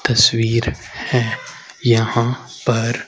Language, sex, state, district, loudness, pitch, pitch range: Hindi, male, Haryana, Rohtak, -18 LUFS, 115 Hz, 115-125 Hz